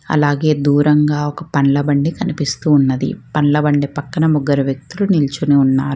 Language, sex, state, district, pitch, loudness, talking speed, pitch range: Telugu, female, Telangana, Hyderabad, 145 Hz, -15 LUFS, 140 wpm, 140-150 Hz